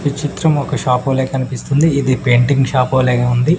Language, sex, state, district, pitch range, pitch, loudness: Telugu, male, Telangana, Mahabubabad, 130-145 Hz, 135 Hz, -15 LUFS